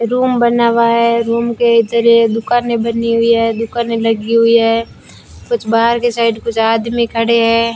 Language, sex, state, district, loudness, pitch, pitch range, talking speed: Hindi, female, Rajasthan, Bikaner, -13 LUFS, 230 Hz, 230-235 Hz, 185 wpm